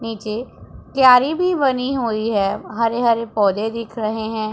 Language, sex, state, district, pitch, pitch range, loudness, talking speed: Hindi, female, Punjab, Pathankot, 230 Hz, 215-250 Hz, -19 LUFS, 160 wpm